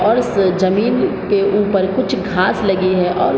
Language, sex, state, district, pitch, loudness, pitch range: Hindi, female, Bihar, Gopalganj, 195 Hz, -16 LUFS, 185-210 Hz